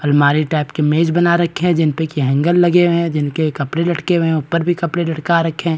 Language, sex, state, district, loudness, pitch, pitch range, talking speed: Hindi, male, Bihar, East Champaran, -16 LUFS, 165 Hz, 150-170 Hz, 280 wpm